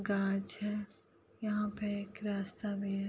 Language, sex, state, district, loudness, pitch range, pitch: Hindi, female, Uttar Pradesh, Etah, -37 LUFS, 200-210 Hz, 205 Hz